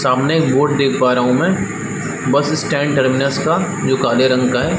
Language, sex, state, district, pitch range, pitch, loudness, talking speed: Hindi, male, Chhattisgarh, Balrampur, 125-145 Hz, 135 Hz, -16 LUFS, 215 wpm